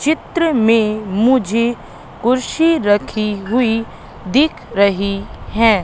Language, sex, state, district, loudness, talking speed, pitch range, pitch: Hindi, female, Madhya Pradesh, Katni, -16 LUFS, 90 wpm, 205-255 Hz, 225 Hz